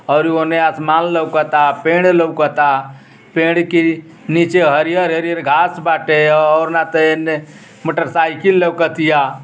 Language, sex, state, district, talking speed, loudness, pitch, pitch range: Bhojpuri, male, Uttar Pradesh, Ghazipur, 115 wpm, -14 LUFS, 160 Hz, 155-170 Hz